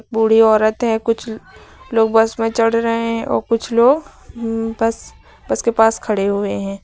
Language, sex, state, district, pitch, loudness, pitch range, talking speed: Hindi, female, Uttar Pradesh, Lucknow, 225 Hz, -17 LUFS, 220-230 Hz, 185 wpm